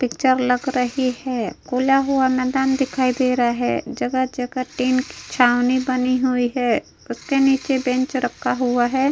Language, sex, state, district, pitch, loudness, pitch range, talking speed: Hindi, female, Uttar Pradesh, Hamirpur, 255 Hz, -20 LUFS, 250-265 Hz, 165 wpm